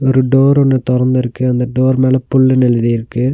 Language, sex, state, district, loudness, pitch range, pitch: Tamil, male, Tamil Nadu, Nilgiris, -13 LUFS, 125-130 Hz, 130 Hz